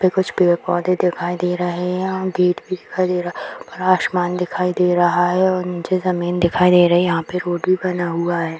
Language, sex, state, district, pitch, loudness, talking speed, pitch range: Hindi, female, Bihar, Bhagalpur, 180 Hz, -18 LUFS, 250 wpm, 175-185 Hz